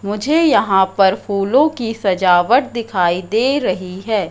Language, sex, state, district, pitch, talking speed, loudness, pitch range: Hindi, female, Madhya Pradesh, Katni, 205 Hz, 140 wpm, -16 LUFS, 190-240 Hz